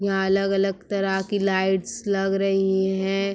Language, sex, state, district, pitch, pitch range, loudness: Hindi, female, Uttar Pradesh, Etah, 195 Hz, 190-195 Hz, -23 LUFS